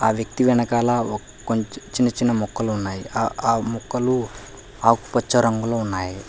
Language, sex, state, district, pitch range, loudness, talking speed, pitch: Telugu, male, Telangana, Hyderabad, 105-120 Hz, -22 LUFS, 145 wpm, 115 Hz